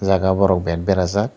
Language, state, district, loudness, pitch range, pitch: Kokborok, Tripura, Dhalai, -18 LUFS, 90-100 Hz, 95 Hz